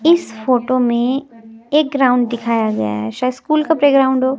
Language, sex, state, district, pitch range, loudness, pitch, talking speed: Hindi, female, Himachal Pradesh, Shimla, 230-275 Hz, -16 LUFS, 255 Hz, 180 wpm